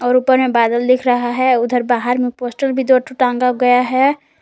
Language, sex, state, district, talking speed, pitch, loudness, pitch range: Hindi, female, Jharkhand, Palamu, 230 wpm, 250 Hz, -15 LUFS, 245-260 Hz